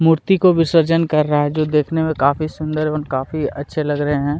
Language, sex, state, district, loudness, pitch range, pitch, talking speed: Hindi, male, Chhattisgarh, Kabirdham, -17 LUFS, 145-160 Hz, 155 Hz, 230 wpm